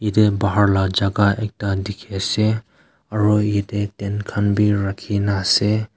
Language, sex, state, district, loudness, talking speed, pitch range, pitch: Nagamese, male, Nagaland, Kohima, -19 LUFS, 130 wpm, 100-105 Hz, 100 Hz